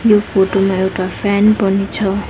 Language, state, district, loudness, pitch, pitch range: Nepali, West Bengal, Darjeeling, -15 LUFS, 195 Hz, 190-205 Hz